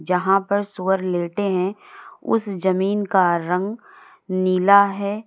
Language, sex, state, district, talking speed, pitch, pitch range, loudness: Hindi, female, Uttar Pradesh, Lalitpur, 125 wpm, 195 Hz, 185-205 Hz, -20 LUFS